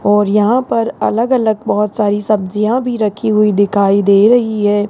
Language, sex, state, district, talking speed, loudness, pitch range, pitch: Hindi, male, Rajasthan, Jaipur, 185 wpm, -13 LUFS, 205-225 Hz, 210 Hz